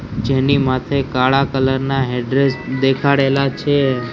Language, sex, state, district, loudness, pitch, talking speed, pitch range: Gujarati, male, Gujarat, Gandhinagar, -16 LUFS, 135 Hz, 100 wpm, 130-140 Hz